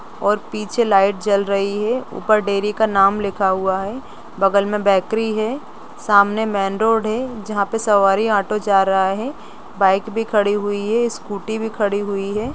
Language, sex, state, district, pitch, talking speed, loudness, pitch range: Hindi, female, Bihar, Gopalganj, 205 Hz, 180 wpm, -18 LUFS, 200-220 Hz